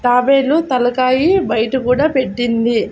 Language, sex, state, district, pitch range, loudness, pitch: Telugu, female, Andhra Pradesh, Annamaya, 245-275 Hz, -15 LUFS, 255 Hz